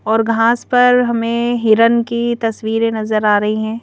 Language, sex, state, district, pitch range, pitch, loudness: Hindi, female, Madhya Pradesh, Bhopal, 220-235 Hz, 230 Hz, -15 LUFS